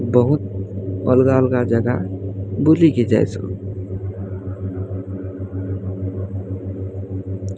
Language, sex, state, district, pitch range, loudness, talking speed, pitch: Odia, female, Odisha, Sambalpur, 95-110 Hz, -21 LUFS, 50 wpm, 95 Hz